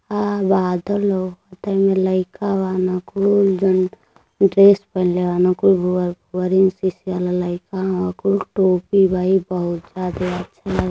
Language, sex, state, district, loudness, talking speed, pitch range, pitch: Bhojpuri, male, Uttar Pradesh, Deoria, -18 LUFS, 170 wpm, 180-195 Hz, 185 Hz